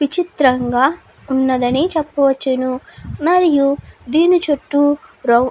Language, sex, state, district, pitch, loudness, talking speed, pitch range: Telugu, female, Andhra Pradesh, Guntur, 285 Hz, -16 LUFS, 100 wpm, 260-320 Hz